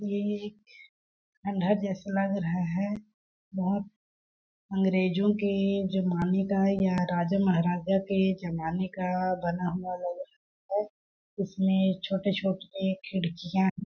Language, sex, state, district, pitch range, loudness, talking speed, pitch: Hindi, female, Chhattisgarh, Balrampur, 185-200 Hz, -29 LUFS, 115 wpm, 190 Hz